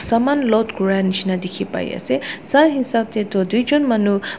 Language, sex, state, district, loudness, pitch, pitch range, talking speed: Nagamese, female, Nagaland, Dimapur, -18 LUFS, 220 Hz, 195-250 Hz, 205 wpm